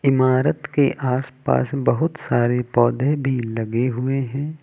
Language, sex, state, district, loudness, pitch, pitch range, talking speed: Hindi, male, Uttar Pradesh, Lucknow, -21 LUFS, 130 Hz, 125-140 Hz, 140 wpm